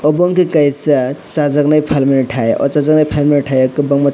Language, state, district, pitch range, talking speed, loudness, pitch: Kokborok, Tripura, West Tripura, 135-150 Hz, 175 wpm, -13 LUFS, 145 Hz